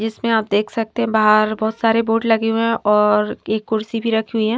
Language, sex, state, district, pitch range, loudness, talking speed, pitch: Hindi, female, Himachal Pradesh, Shimla, 215-225 Hz, -18 LUFS, 250 wpm, 220 Hz